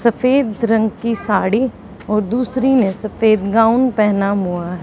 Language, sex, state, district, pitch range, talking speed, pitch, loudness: Hindi, female, Haryana, Charkhi Dadri, 200-235 Hz, 135 wpm, 220 Hz, -16 LUFS